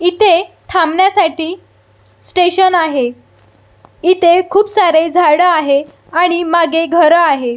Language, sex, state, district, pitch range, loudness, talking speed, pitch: Marathi, female, Maharashtra, Solapur, 320-365 Hz, -12 LUFS, 110 wpm, 345 Hz